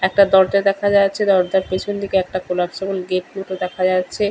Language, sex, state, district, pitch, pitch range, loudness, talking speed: Bengali, male, West Bengal, Kolkata, 190 Hz, 185-200 Hz, -18 LUFS, 165 wpm